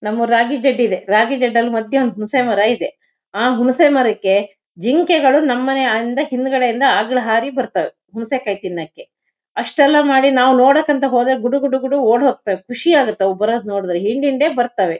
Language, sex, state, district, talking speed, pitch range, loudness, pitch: Kannada, female, Karnataka, Shimoga, 145 wpm, 215-270 Hz, -15 LUFS, 245 Hz